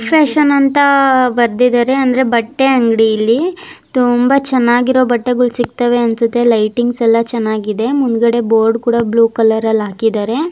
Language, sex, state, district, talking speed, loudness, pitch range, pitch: Kannada, female, Karnataka, Raichur, 130 wpm, -13 LUFS, 230-260 Hz, 240 Hz